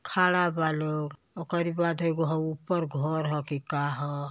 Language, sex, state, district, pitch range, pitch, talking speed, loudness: Bhojpuri, male, Uttar Pradesh, Ghazipur, 145-170 Hz, 160 Hz, 165 wpm, -29 LUFS